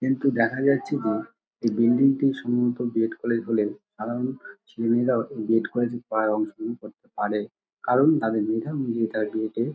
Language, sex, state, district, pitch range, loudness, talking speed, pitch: Bengali, male, West Bengal, Dakshin Dinajpur, 110-130 Hz, -25 LUFS, 195 wpm, 115 Hz